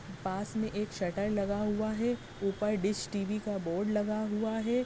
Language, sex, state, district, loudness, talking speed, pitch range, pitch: Hindi, female, Bihar, Madhepura, -33 LUFS, 185 wpm, 200-215 Hz, 210 Hz